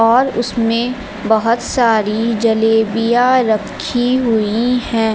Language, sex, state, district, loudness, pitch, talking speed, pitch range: Hindi, female, Uttar Pradesh, Lucknow, -15 LUFS, 230 Hz, 95 wpm, 220-245 Hz